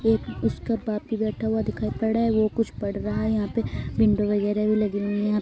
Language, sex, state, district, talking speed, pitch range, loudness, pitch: Hindi, female, Uttar Pradesh, Gorakhpur, 275 wpm, 205-220 Hz, -25 LUFS, 210 Hz